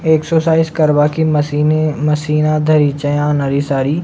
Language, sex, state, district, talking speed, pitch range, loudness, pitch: Rajasthani, male, Rajasthan, Nagaur, 150 wpm, 145-155 Hz, -14 LUFS, 150 Hz